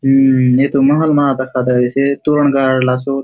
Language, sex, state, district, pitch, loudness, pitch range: Halbi, male, Chhattisgarh, Bastar, 135 Hz, -13 LUFS, 130-140 Hz